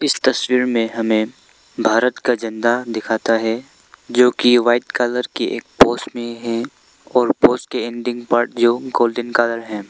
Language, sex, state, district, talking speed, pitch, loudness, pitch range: Hindi, male, Arunachal Pradesh, Lower Dibang Valley, 165 wpm, 120 Hz, -18 LUFS, 115-125 Hz